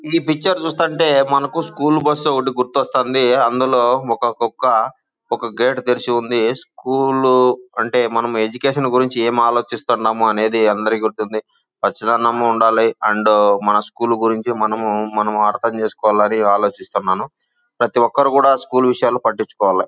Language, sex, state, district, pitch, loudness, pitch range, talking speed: Telugu, male, Andhra Pradesh, Chittoor, 120 Hz, -17 LUFS, 110-135 Hz, 135 wpm